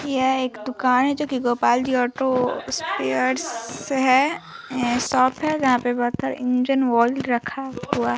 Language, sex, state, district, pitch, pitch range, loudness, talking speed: Hindi, female, Bihar, Vaishali, 255 Hz, 240-265 Hz, -21 LUFS, 170 wpm